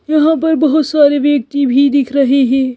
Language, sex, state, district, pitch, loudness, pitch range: Hindi, female, Madhya Pradesh, Bhopal, 285 Hz, -12 LUFS, 275-305 Hz